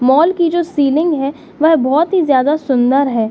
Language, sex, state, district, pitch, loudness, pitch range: Hindi, female, Jharkhand, Sahebganj, 295 Hz, -14 LUFS, 270-325 Hz